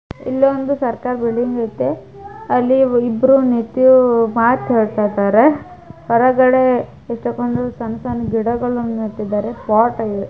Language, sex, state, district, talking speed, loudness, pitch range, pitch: Kannada, female, Karnataka, Bijapur, 100 wpm, -16 LUFS, 225-255 Hz, 240 Hz